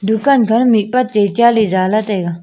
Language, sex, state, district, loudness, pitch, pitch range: Wancho, female, Arunachal Pradesh, Longding, -13 LUFS, 220 Hz, 200-235 Hz